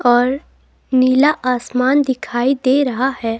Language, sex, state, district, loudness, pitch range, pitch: Hindi, female, Himachal Pradesh, Shimla, -16 LUFS, 245-270 Hz, 255 Hz